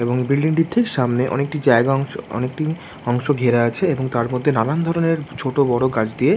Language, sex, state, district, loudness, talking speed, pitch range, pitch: Bengali, male, West Bengal, Jhargram, -19 LUFS, 200 wpm, 125-155 Hz, 135 Hz